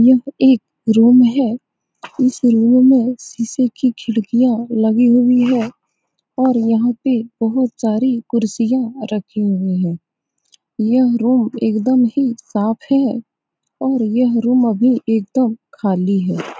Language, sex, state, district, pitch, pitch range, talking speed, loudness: Hindi, female, Bihar, Saran, 240 Hz, 225-255 Hz, 130 wpm, -16 LUFS